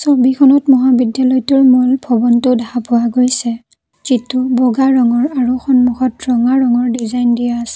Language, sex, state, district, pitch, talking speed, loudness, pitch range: Assamese, female, Assam, Kamrup Metropolitan, 250 Hz, 130 wpm, -13 LUFS, 240-260 Hz